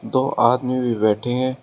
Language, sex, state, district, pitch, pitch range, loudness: Hindi, male, Uttar Pradesh, Shamli, 125 Hz, 120-130 Hz, -20 LUFS